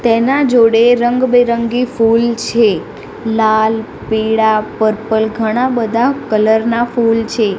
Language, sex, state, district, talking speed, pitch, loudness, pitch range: Gujarati, female, Gujarat, Gandhinagar, 110 wpm, 230 Hz, -13 LUFS, 220-240 Hz